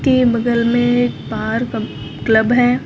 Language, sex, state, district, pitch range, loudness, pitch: Hindi, female, Uttar Pradesh, Lucknow, 225-245 Hz, -16 LUFS, 240 Hz